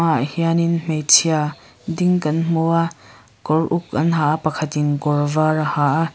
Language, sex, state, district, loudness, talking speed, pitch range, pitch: Mizo, female, Mizoram, Aizawl, -18 LUFS, 175 wpm, 150-165 Hz, 155 Hz